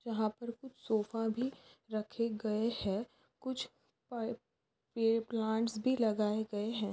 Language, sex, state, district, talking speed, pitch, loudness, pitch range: Hindi, female, Maharashtra, Aurangabad, 120 wpm, 225 Hz, -36 LUFS, 215-235 Hz